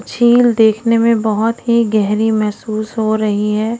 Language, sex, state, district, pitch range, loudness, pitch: Hindi, female, Odisha, Khordha, 215-230 Hz, -14 LUFS, 220 Hz